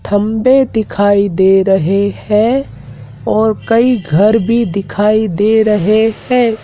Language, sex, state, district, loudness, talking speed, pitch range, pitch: Hindi, male, Madhya Pradesh, Dhar, -12 LUFS, 115 wpm, 200-225 Hz, 215 Hz